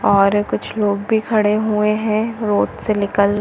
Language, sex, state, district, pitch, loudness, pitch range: Hindi, female, Chhattisgarh, Bilaspur, 210 Hz, -18 LUFS, 200-215 Hz